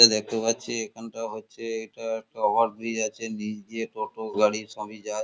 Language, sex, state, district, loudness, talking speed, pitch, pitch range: Bengali, male, West Bengal, Kolkata, -28 LUFS, 170 wpm, 110 Hz, 110-115 Hz